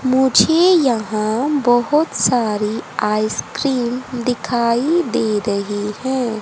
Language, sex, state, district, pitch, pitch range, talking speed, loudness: Hindi, female, Haryana, Charkhi Dadri, 240 Hz, 215-265 Hz, 85 wpm, -17 LUFS